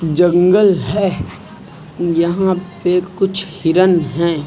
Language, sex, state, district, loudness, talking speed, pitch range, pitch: Hindi, male, Uttar Pradesh, Lucknow, -15 LUFS, 95 wpm, 170-190 Hz, 180 Hz